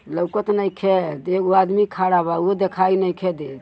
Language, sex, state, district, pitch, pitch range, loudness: Bhojpuri, male, Uttar Pradesh, Gorakhpur, 185 Hz, 180-195 Hz, -20 LUFS